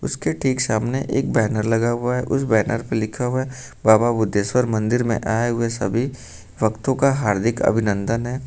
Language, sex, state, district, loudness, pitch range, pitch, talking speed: Hindi, male, Uttar Pradesh, Lucknow, -20 LUFS, 110-125 Hz, 115 Hz, 175 wpm